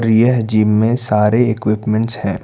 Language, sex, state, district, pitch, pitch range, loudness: Hindi, male, Karnataka, Bangalore, 110 Hz, 105-115 Hz, -15 LUFS